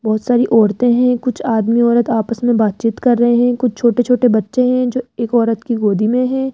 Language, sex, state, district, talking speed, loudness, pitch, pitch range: Hindi, female, Rajasthan, Jaipur, 230 wpm, -15 LUFS, 240 Hz, 225-250 Hz